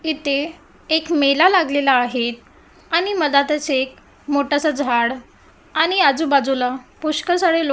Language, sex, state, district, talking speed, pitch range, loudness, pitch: Marathi, female, Maharashtra, Gondia, 115 wpm, 270-320 Hz, -18 LUFS, 290 Hz